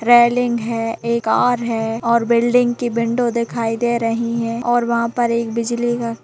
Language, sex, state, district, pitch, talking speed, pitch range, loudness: Hindi, female, Chhattisgarh, Raigarh, 235 Hz, 190 wpm, 230-240 Hz, -18 LUFS